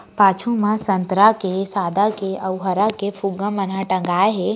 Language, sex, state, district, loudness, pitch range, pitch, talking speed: Hindi, female, Chhattisgarh, Raigarh, -19 LUFS, 190-210 Hz, 195 Hz, 170 wpm